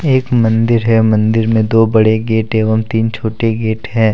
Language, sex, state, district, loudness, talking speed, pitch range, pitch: Hindi, male, Jharkhand, Deoghar, -13 LUFS, 190 wpm, 110-115 Hz, 110 Hz